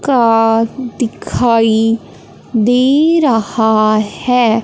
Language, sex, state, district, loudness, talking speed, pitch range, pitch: Hindi, male, Punjab, Fazilka, -13 LUFS, 65 wpm, 225-250 Hz, 230 Hz